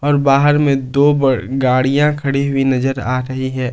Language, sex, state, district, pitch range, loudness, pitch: Hindi, male, Jharkhand, Palamu, 130-140 Hz, -15 LUFS, 135 Hz